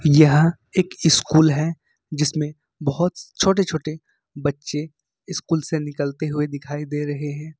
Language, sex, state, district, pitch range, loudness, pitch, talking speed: Hindi, male, Jharkhand, Ranchi, 145-160 Hz, -21 LUFS, 150 Hz, 135 wpm